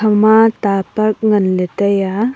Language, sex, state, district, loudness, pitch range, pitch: Wancho, female, Arunachal Pradesh, Longding, -14 LUFS, 195-220 Hz, 210 Hz